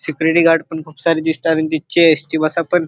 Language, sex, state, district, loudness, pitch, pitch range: Marathi, male, Maharashtra, Chandrapur, -15 LUFS, 160 Hz, 155-165 Hz